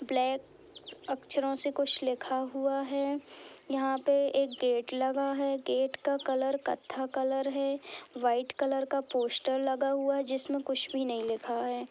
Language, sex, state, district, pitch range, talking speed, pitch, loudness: Hindi, female, Uttar Pradesh, Budaun, 265-280 Hz, 160 wpm, 270 Hz, -32 LUFS